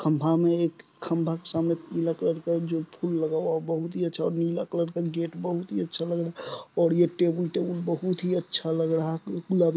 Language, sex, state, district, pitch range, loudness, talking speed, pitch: Hindi, male, Bihar, Supaul, 165-175 Hz, -27 LUFS, 235 wpm, 170 Hz